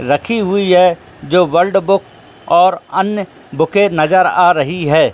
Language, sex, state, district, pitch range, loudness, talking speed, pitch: Hindi, male, Jharkhand, Jamtara, 160-195 Hz, -13 LUFS, 115 wpm, 180 Hz